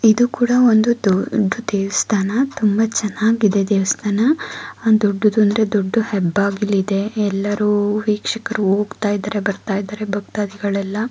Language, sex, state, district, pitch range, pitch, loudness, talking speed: Kannada, female, Karnataka, Mysore, 200-220 Hz, 210 Hz, -18 LUFS, 125 wpm